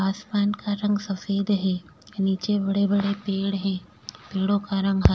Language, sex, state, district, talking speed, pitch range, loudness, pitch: Hindi, female, Goa, North and South Goa, 165 wpm, 195-205 Hz, -25 LUFS, 200 Hz